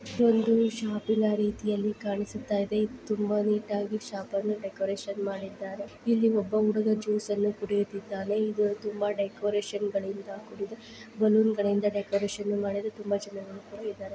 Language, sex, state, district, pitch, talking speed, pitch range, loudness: Kannada, female, Karnataka, Dharwad, 205 Hz, 95 wpm, 200-215 Hz, -29 LUFS